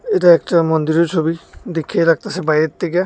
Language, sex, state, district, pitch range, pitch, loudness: Bengali, male, Tripura, West Tripura, 160-180 Hz, 170 Hz, -16 LUFS